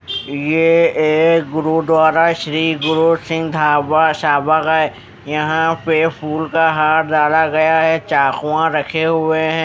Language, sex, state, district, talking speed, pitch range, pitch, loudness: Hindi, male, Maharashtra, Mumbai Suburban, 135 wpm, 155-160 Hz, 160 Hz, -15 LUFS